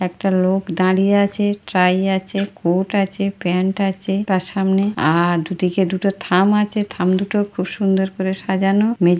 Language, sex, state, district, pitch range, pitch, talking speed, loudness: Bengali, female, West Bengal, North 24 Parganas, 185-200 Hz, 190 Hz, 145 wpm, -18 LUFS